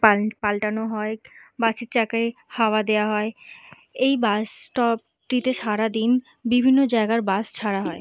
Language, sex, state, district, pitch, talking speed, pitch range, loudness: Bengali, female, West Bengal, Purulia, 225 Hz, 165 wpm, 215-240 Hz, -23 LUFS